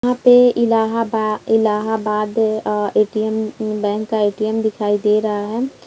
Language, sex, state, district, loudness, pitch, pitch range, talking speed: Hindi, female, Bihar, Kishanganj, -17 LUFS, 215 Hz, 210-225 Hz, 135 wpm